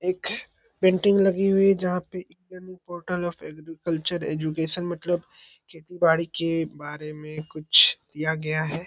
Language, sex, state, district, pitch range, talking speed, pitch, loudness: Hindi, male, Chhattisgarh, Sarguja, 155-180 Hz, 160 wpm, 170 Hz, -24 LUFS